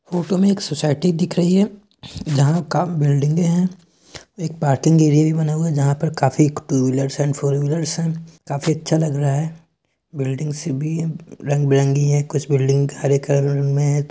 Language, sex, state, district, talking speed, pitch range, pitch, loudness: Hindi, male, Bihar, Gopalganj, 175 wpm, 140-165 Hz, 150 Hz, -19 LUFS